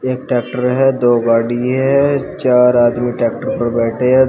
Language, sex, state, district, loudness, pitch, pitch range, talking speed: Hindi, male, Uttar Pradesh, Shamli, -14 LUFS, 125 Hz, 120-130 Hz, 180 wpm